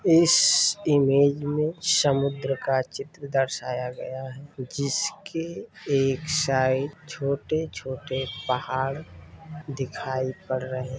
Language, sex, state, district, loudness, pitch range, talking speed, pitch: Hindi, male, Uttar Pradesh, Varanasi, -25 LUFS, 130-155 Hz, 105 wpm, 140 Hz